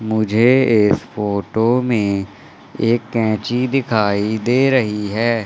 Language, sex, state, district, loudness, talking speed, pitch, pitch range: Hindi, male, Madhya Pradesh, Katni, -17 LUFS, 110 wpm, 110 Hz, 105-120 Hz